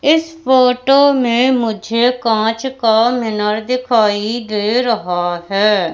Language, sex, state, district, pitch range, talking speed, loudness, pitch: Hindi, female, Madhya Pradesh, Katni, 210-255 Hz, 110 wpm, -15 LUFS, 230 Hz